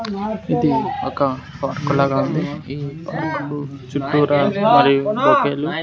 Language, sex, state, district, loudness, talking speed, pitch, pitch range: Telugu, male, Andhra Pradesh, Sri Satya Sai, -19 LUFS, 115 wpm, 145 Hz, 140-165 Hz